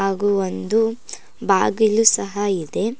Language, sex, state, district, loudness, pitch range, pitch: Kannada, female, Karnataka, Koppal, -19 LUFS, 195-225 Hz, 205 Hz